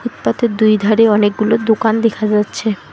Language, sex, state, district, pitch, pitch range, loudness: Bengali, female, West Bengal, Alipurduar, 220 Hz, 210-225 Hz, -14 LUFS